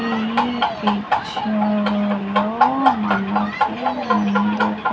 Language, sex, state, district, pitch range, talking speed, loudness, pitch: Telugu, female, Andhra Pradesh, Manyam, 210-255 Hz, 60 wpm, -19 LUFS, 215 Hz